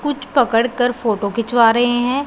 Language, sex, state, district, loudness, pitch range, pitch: Hindi, male, Punjab, Pathankot, -16 LUFS, 230-260 Hz, 245 Hz